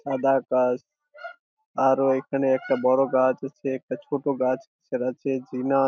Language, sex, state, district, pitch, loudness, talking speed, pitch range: Bengali, male, West Bengal, Jhargram, 135 Hz, -24 LUFS, 130 wpm, 130-145 Hz